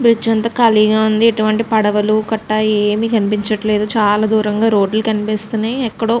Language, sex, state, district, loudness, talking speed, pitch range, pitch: Telugu, female, Andhra Pradesh, Krishna, -15 LUFS, 145 wpm, 215-225 Hz, 215 Hz